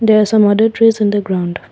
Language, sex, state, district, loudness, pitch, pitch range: English, female, Assam, Kamrup Metropolitan, -13 LUFS, 215 Hz, 205-220 Hz